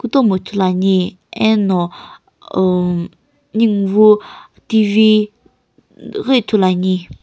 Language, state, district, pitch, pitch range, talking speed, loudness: Sumi, Nagaland, Kohima, 200 Hz, 185-215 Hz, 65 wpm, -15 LUFS